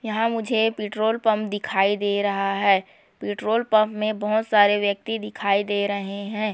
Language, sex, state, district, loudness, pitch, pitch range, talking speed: Hindi, female, Chhattisgarh, Kabirdham, -22 LUFS, 210 Hz, 200-220 Hz, 165 wpm